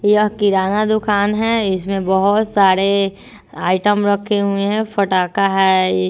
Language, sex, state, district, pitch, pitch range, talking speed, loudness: Hindi, female, Bihar, Vaishali, 200 Hz, 190-210 Hz, 135 wpm, -16 LUFS